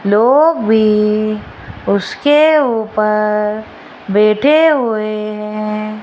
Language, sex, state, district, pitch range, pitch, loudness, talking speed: Hindi, female, Rajasthan, Jaipur, 210-235 Hz, 215 Hz, -13 LUFS, 70 wpm